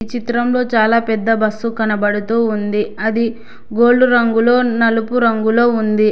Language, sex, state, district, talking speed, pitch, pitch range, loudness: Telugu, female, Telangana, Hyderabad, 115 wpm, 225 Hz, 220-235 Hz, -15 LUFS